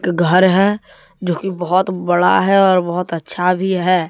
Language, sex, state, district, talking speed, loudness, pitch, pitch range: Hindi, male, Jharkhand, Deoghar, 190 wpm, -15 LUFS, 185 Hz, 175-190 Hz